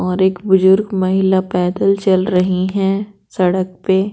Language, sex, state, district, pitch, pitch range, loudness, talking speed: Hindi, female, Bihar, Patna, 190 Hz, 185-195 Hz, -15 LUFS, 145 wpm